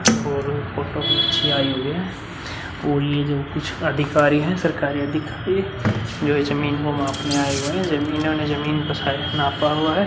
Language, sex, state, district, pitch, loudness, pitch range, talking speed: Hindi, male, Uttar Pradesh, Muzaffarnagar, 145 Hz, -21 LUFS, 140-150 Hz, 175 wpm